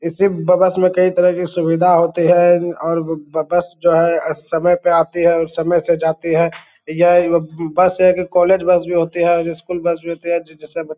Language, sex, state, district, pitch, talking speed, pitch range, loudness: Hindi, male, Bihar, Lakhisarai, 170 Hz, 210 wpm, 165-175 Hz, -15 LUFS